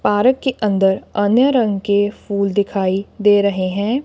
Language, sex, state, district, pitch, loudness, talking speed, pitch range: Hindi, female, Punjab, Kapurthala, 205 Hz, -17 LUFS, 165 wpm, 200-220 Hz